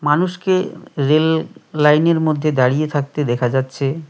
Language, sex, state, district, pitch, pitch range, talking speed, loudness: Bengali, male, West Bengal, Cooch Behar, 150 Hz, 140-160 Hz, 115 wpm, -17 LUFS